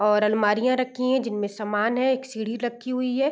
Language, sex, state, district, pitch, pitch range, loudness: Hindi, female, Bihar, Gopalganj, 240 Hz, 210-255 Hz, -24 LUFS